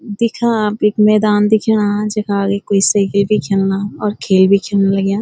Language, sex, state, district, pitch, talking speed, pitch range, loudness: Garhwali, female, Uttarakhand, Uttarkashi, 205 Hz, 185 wpm, 200-210 Hz, -14 LUFS